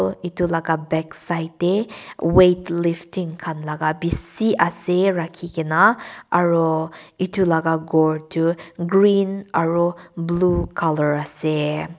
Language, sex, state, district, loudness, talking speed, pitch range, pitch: Nagamese, female, Nagaland, Kohima, -20 LUFS, 100 wpm, 160-180 Hz, 170 Hz